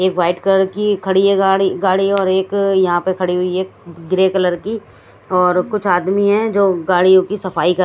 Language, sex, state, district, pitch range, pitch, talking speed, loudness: Hindi, female, Chandigarh, Chandigarh, 180-195 Hz, 190 Hz, 205 wpm, -15 LUFS